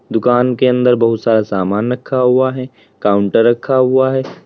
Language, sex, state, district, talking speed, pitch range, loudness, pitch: Hindi, male, Uttar Pradesh, Lalitpur, 175 wpm, 110-130 Hz, -14 LUFS, 125 Hz